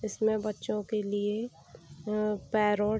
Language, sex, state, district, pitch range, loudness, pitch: Hindi, female, Bihar, Gopalganj, 205-215 Hz, -31 LUFS, 210 Hz